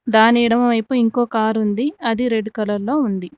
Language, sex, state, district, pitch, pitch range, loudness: Telugu, female, Telangana, Mahabubabad, 230 Hz, 220-240 Hz, -18 LUFS